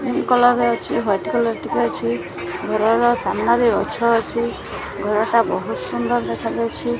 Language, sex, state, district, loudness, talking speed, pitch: Odia, female, Odisha, Sambalpur, -19 LUFS, 130 wpm, 215 Hz